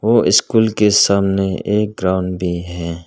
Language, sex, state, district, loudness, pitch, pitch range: Hindi, male, Arunachal Pradesh, Lower Dibang Valley, -16 LUFS, 95 Hz, 90-105 Hz